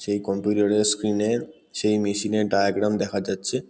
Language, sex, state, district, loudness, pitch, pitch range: Bengali, male, West Bengal, Kolkata, -23 LUFS, 105 Hz, 100-105 Hz